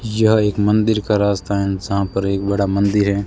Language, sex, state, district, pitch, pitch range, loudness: Hindi, male, Rajasthan, Bikaner, 100 Hz, 100-105 Hz, -17 LUFS